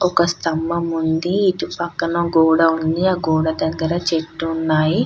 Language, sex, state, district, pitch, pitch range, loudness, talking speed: Telugu, female, Andhra Pradesh, Krishna, 165 Hz, 160-170 Hz, -19 LUFS, 130 wpm